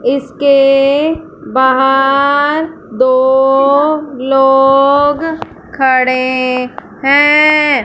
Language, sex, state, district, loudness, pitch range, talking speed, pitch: Hindi, female, Punjab, Fazilka, -10 LUFS, 260-290 Hz, 45 wpm, 275 Hz